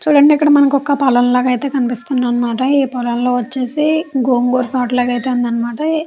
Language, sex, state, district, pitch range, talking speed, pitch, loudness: Telugu, female, Andhra Pradesh, Chittoor, 245-285 Hz, 170 wpm, 255 Hz, -15 LUFS